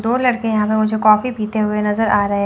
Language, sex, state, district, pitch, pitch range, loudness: Hindi, female, Chandigarh, Chandigarh, 215 Hz, 210-225 Hz, -16 LUFS